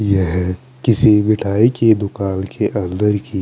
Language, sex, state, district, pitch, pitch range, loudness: Hindi, male, Chandigarh, Chandigarh, 105 Hz, 95-110 Hz, -16 LUFS